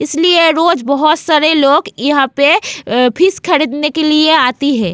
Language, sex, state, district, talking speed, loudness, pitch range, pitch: Hindi, female, Goa, North and South Goa, 160 wpm, -11 LUFS, 280-325 Hz, 305 Hz